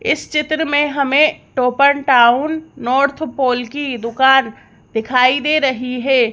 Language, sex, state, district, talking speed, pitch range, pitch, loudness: Hindi, female, Madhya Pradesh, Bhopal, 125 wpm, 250-290 Hz, 270 Hz, -15 LUFS